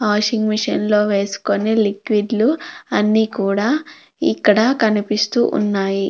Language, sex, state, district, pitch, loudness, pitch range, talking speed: Telugu, female, Andhra Pradesh, Krishna, 215 Hz, -17 LUFS, 205-225 Hz, 100 wpm